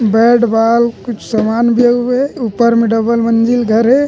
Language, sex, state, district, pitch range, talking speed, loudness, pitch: Chhattisgarhi, male, Chhattisgarh, Rajnandgaon, 225-240 Hz, 205 wpm, -12 LUFS, 235 Hz